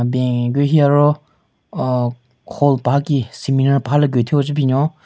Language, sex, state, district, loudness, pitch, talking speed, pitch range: Rengma, male, Nagaland, Kohima, -17 LUFS, 140 Hz, 190 wpm, 125-145 Hz